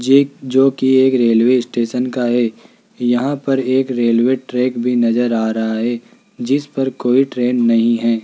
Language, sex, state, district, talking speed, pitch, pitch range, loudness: Hindi, male, Rajasthan, Jaipur, 175 wpm, 125 Hz, 120-130 Hz, -16 LUFS